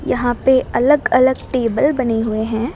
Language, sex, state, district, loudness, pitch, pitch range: Hindi, female, Gujarat, Gandhinagar, -16 LUFS, 250 Hz, 230-265 Hz